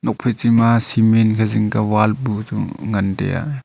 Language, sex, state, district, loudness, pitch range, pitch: Wancho, male, Arunachal Pradesh, Longding, -17 LUFS, 105-115 Hz, 110 Hz